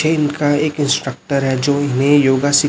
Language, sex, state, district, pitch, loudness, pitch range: Hindi, male, Chhattisgarh, Raipur, 145 Hz, -16 LUFS, 140-145 Hz